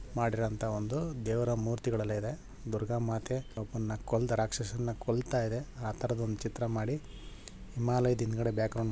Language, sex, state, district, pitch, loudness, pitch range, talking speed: Kannada, male, Karnataka, Shimoga, 115 Hz, -34 LUFS, 110-120 Hz, 135 wpm